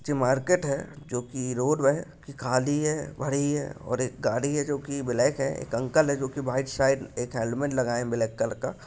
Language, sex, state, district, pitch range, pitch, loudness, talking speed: Hindi, male, Bihar, Lakhisarai, 125-145 Hz, 135 Hz, -27 LUFS, 225 wpm